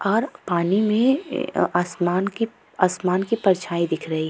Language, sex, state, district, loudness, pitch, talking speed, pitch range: Hindi, female, Uttar Pradesh, Jalaun, -22 LUFS, 185 Hz, 165 wpm, 175-215 Hz